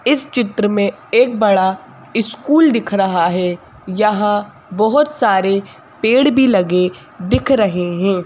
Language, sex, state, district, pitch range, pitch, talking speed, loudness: Hindi, female, Madhya Pradesh, Bhopal, 185-245 Hz, 205 Hz, 130 wpm, -15 LUFS